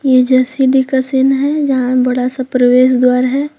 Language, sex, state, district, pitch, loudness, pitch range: Hindi, female, Jharkhand, Deoghar, 260 Hz, -12 LUFS, 255-270 Hz